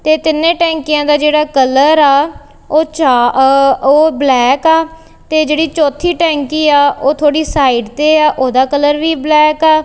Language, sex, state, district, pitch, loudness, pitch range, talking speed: Punjabi, female, Punjab, Kapurthala, 300 Hz, -11 LUFS, 280-315 Hz, 170 wpm